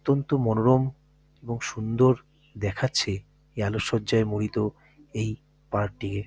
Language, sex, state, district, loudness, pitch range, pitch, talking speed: Bengali, male, West Bengal, North 24 Parganas, -26 LUFS, 105-140 Hz, 115 Hz, 115 wpm